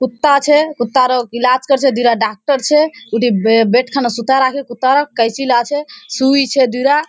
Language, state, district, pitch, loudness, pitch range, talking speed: Surjapuri, Bihar, Kishanganj, 260 Hz, -14 LUFS, 240-280 Hz, 195 wpm